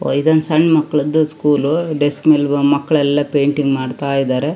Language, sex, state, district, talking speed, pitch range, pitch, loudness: Kannada, female, Karnataka, Shimoga, 145 wpm, 140-155 Hz, 145 Hz, -15 LUFS